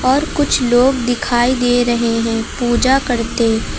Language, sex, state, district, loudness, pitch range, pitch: Hindi, female, Uttar Pradesh, Lucknow, -15 LUFS, 235-255 Hz, 245 Hz